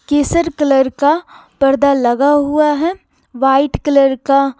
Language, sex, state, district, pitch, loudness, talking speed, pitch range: Hindi, female, Bihar, Patna, 280 Hz, -14 LUFS, 130 wpm, 270-295 Hz